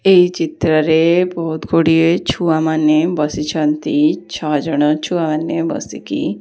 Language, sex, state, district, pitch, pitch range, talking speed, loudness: Odia, female, Odisha, Khordha, 160 Hz, 155-170 Hz, 105 wpm, -16 LUFS